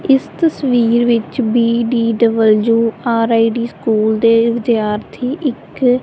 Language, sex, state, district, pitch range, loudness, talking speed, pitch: Punjabi, female, Punjab, Kapurthala, 230-245 Hz, -14 LUFS, 90 wpm, 235 Hz